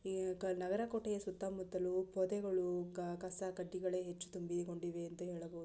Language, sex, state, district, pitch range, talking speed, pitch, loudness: Kannada, female, Karnataka, Gulbarga, 175-190 Hz, 105 wpm, 185 Hz, -42 LUFS